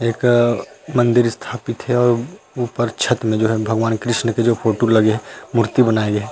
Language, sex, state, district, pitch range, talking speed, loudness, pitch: Chhattisgarhi, male, Chhattisgarh, Rajnandgaon, 110-120 Hz, 200 wpm, -18 LUFS, 120 Hz